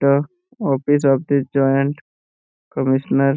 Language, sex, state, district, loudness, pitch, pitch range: Bengali, male, West Bengal, Purulia, -18 LUFS, 140 Hz, 135-145 Hz